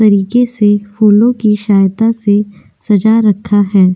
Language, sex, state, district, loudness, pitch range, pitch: Hindi, female, Goa, North and South Goa, -11 LUFS, 205-220 Hz, 210 Hz